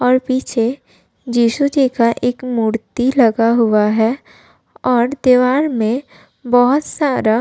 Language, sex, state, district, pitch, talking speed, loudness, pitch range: Hindi, female, Uttar Pradesh, Budaun, 245 Hz, 130 wpm, -15 LUFS, 230-260 Hz